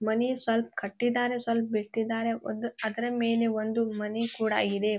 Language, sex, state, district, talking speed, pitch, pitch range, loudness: Kannada, female, Karnataka, Bijapur, 155 wpm, 225 Hz, 220-235 Hz, -29 LUFS